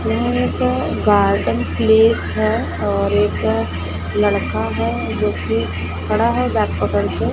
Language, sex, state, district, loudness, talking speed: Hindi, female, Maharashtra, Gondia, -18 LUFS, 125 wpm